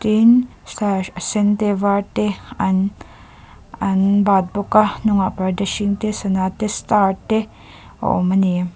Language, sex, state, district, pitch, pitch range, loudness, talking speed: Mizo, female, Mizoram, Aizawl, 200 Hz, 190-215 Hz, -18 LUFS, 185 wpm